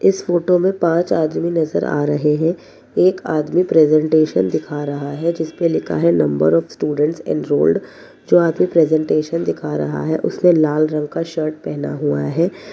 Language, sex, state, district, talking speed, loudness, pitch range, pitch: Hindi, male, Uttar Pradesh, Jyotiba Phule Nagar, 170 wpm, -17 LUFS, 145-170 Hz, 155 Hz